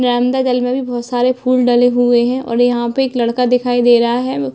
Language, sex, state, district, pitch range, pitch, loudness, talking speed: Hindi, female, Uttar Pradesh, Hamirpur, 240-250 Hz, 245 Hz, -14 LUFS, 250 wpm